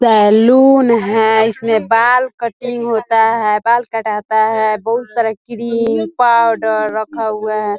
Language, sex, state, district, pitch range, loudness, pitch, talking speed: Hindi, female, Bihar, East Champaran, 215-235 Hz, -14 LUFS, 225 Hz, 130 wpm